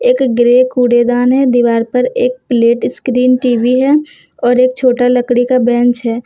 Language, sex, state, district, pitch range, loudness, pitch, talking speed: Hindi, female, Jharkhand, Deoghar, 240-255 Hz, -11 LUFS, 245 Hz, 170 wpm